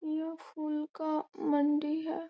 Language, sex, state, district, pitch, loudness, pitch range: Hindi, female, Bihar, Gopalganj, 310 Hz, -33 LUFS, 300-320 Hz